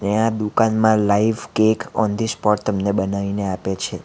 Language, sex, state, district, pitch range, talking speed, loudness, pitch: Gujarati, male, Gujarat, Valsad, 100-110 Hz, 180 wpm, -19 LUFS, 105 Hz